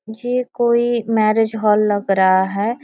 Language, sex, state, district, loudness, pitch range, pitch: Hindi, female, Jharkhand, Sahebganj, -17 LUFS, 205-240 Hz, 220 Hz